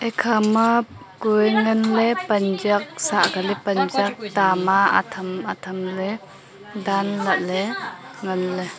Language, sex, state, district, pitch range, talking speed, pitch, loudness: Wancho, female, Arunachal Pradesh, Longding, 190-215 Hz, 135 wpm, 200 Hz, -21 LUFS